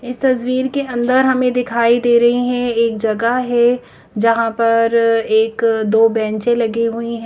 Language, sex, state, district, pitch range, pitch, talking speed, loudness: Hindi, female, Madhya Pradesh, Bhopal, 230-250 Hz, 235 Hz, 165 wpm, -15 LUFS